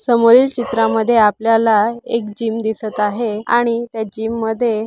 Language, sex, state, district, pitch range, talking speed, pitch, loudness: Marathi, female, Maharashtra, Aurangabad, 220-235 Hz, 135 wpm, 225 Hz, -16 LUFS